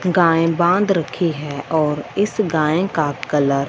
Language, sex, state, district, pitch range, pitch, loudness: Hindi, female, Punjab, Fazilka, 150-180 Hz, 165 Hz, -18 LUFS